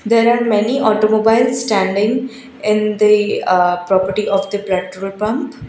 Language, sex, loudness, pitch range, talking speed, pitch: English, female, -15 LUFS, 195-230 Hz, 135 wpm, 210 Hz